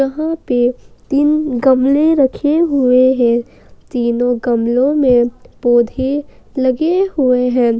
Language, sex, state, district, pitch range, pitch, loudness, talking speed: Hindi, female, Jharkhand, Ranchi, 245-290 Hz, 260 Hz, -14 LUFS, 110 wpm